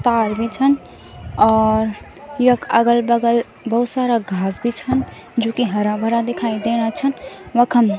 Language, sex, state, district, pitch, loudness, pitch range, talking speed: Garhwali, female, Uttarakhand, Tehri Garhwal, 235 Hz, -18 LUFS, 220-240 Hz, 135 wpm